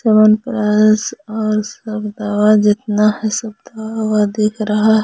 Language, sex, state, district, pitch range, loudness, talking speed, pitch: Hindi, female, Jharkhand, Garhwa, 210-220 Hz, -15 LUFS, 130 wpm, 215 Hz